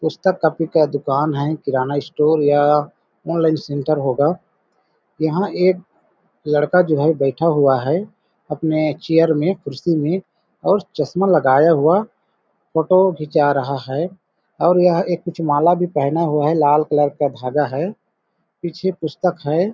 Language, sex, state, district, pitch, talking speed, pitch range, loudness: Hindi, male, Chhattisgarh, Balrampur, 160 Hz, 150 wpm, 145-175 Hz, -18 LUFS